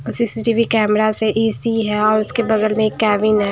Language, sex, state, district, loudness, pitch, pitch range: Hindi, female, Punjab, Kapurthala, -15 LUFS, 215 Hz, 215-225 Hz